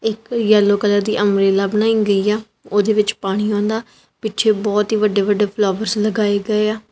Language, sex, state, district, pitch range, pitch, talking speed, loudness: Punjabi, female, Punjab, Kapurthala, 205-215 Hz, 210 Hz, 180 wpm, -17 LUFS